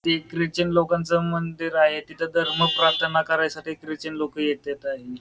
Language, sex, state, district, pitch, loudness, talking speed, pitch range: Marathi, male, Maharashtra, Pune, 165 Hz, -23 LUFS, 150 wpm, 155-170 Hz